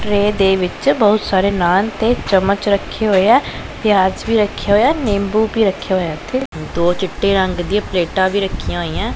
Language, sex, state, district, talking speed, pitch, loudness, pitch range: Punjabi, male, Punjab, Pathankot, 190 wpm, 200 Hz, -16 LUFS, 190-210 Hz